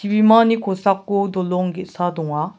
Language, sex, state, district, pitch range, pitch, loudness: Garo, male, Meghalaya, South Garo Hills, 180-205 Hz, 195 Hz, -18 LUFS